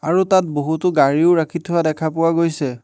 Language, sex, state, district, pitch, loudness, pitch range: Assamese, male, Assam, Hailakandi, 165 Hz, -17 LUFS, 155-170 Hz